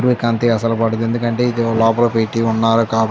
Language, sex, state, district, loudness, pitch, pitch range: Telugu, male, Andhra Pradesh, Chittoor, -16 LUFS, 115 Hz, 115-120 Hz